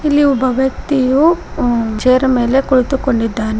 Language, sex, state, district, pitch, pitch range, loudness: Kannada, female, Karnataka, Koppal, 260 Hz, 240-270 Hz, -14 LUFS